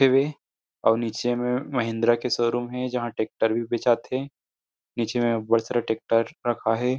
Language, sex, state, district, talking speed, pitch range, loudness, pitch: Chhattisgarhi, male, Chhattisgarh, Rajnandgaon, 170 wpm, 115-125 Hz, -25 LUFS, 120 Hz